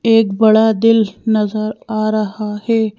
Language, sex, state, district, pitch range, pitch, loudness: Hindi, female, Madhya Pradesh, Bhopal, 215-225 Hz, 215 Hz, -15 LUFS